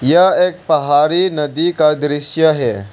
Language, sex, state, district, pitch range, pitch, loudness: Hindi, male, Arunachal Pradesh, Longding, 145-175 Hz, 155 Hz, -14 LUFS